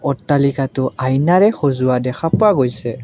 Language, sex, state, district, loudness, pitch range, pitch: Assamese, male, Assam, Kamrup Metropolitan, -16 LUFS, 130-145 Hz, 135 Hz